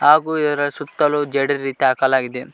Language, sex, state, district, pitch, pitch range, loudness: Kannada, male, Karnataka, Koppal, 145 Hz, 135-150 Hz, -18 LUFS